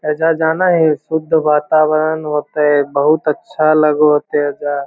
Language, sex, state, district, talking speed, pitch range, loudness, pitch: Magahi, male, Bihar, Lakhisarai, 135 wpm, 150-160 Hz, -14 LUFS, 155 Hz